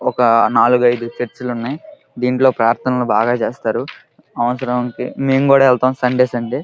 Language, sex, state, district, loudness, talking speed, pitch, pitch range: Telugu, male, Andhra Pradesh, Krishna, -16 LUFS, 135 wpm, 125 Hz, 120-130 Hz